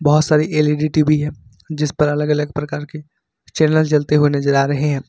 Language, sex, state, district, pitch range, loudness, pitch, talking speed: Hindi, male, Uttar Pradesh, Lucknow, 145-155 Hz, -17 LUFS, 150 Hz, 210 wpm